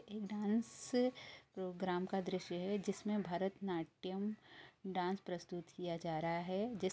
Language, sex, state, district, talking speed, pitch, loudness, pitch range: Hindi, female, Uttar Pradesh, Jyotiba Phule Nagar, 145 wpm, 190 Hz, -41 LUFS, 180-205 Hz